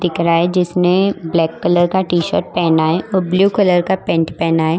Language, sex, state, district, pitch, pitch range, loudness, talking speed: Hindi, female, Maharashtra, Chandrapur, 175 Hz, 165-185 Hz, -15 LUFS, 240 wpm